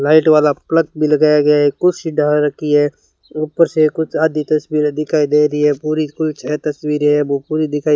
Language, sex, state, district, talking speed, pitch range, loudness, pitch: Hindi, male, Rajasthan, Bikaner, 210 wpm, 150-155 Hz, -15 LUFS, 150 Hz